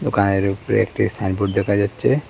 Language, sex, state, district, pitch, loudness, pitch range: Bengali, male, Assam, Hailakandi, 100 Hz, -20 LUFS, 95-105 Hz